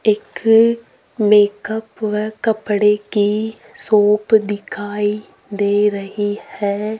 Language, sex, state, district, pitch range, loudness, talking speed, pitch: Hindi, female, Rajasthan, Jaipur, 205-220 Hz, -17 LUFS, 85 wpm, 210 Hz